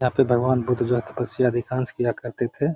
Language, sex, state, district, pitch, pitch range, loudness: Hindi, male, Bihar, Gaya, 125 Hz, 120-130 Hz, -23 LUFS